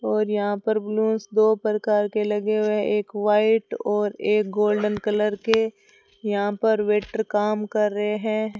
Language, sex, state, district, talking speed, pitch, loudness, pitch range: Hindi, female, Rajasthan, Bikaner, 160 wpm, 210 Hz, -23 LUFS, 210-220 Hz